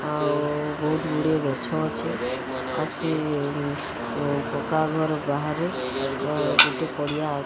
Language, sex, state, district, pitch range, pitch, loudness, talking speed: Odia, female, Odisha, Sambalpur, 135-155 Hz, 145 Hz, -25 LUFS, 95 wpm